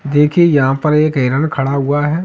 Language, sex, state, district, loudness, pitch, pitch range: Hindi, male, Uttar Pradesh, Etah, -13 LUFS, 145 Hz, 140-155 Hz